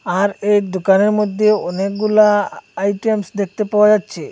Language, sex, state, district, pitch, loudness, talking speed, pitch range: Bengali, male, Assam, Hailakandi, 205 Hz, -16 LUFS, 125 wpm, 195-215 Hz